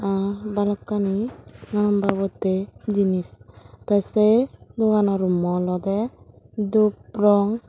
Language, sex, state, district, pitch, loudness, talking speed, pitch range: Chakma, female, Tripura, Dhalai, 200 Hz, -22 LUFS, 85 wpm, 190-210 Hz